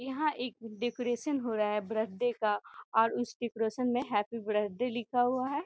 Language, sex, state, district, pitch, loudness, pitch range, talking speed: Hindi, female, Bihar, Gopalganj, 240 Hz, -33 LUFS, 220-250 Hz, 180 wpm